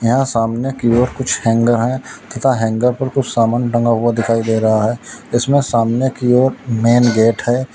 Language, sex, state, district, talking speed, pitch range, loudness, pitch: Hindi, male, Uttar Pradesh, Lalitpur, 195 wpm, 115-125 Hz, -15 LUFS, 120 Hz